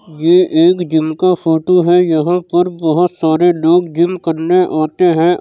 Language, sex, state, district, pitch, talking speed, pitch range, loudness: Hindi, male, Uttar Pradesh, Jyotiba Phule Nagar, 175 Hz, 165 wpm, 160-180 Hz, -13 LUFS